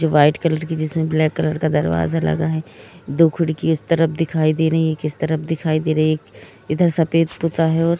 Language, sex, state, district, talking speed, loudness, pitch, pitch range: Hindi, female, Jharkhand, Jamtara, 225 wpm, -19 LUFS, 160 Hz, 155-165 Hz